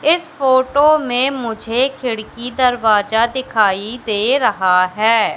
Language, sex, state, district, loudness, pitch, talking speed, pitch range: Hindi, female, Madhya Pradesh, Katni, -16 LUFS, 245 Hz, 110 wpm, 215-260 Hz